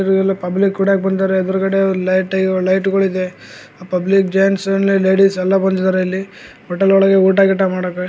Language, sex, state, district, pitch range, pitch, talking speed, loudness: Kannada, male, Karnataka, Gulbarga, 185-195 Hz, 190 Hz, 150 wpm, -15 LUFS